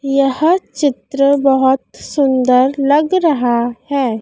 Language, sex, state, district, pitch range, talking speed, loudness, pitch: Hindi, female, Madhya Pradesh, Dhar, 255-285 Hz, 100 wpm, -14 LUFS, 275 Hz